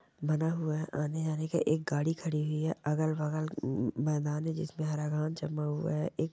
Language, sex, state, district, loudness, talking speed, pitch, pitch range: Hindi, female, Rajasthan, Churu, -33 LUFS, 200 wpm, 155 Hz, 150-160 Hz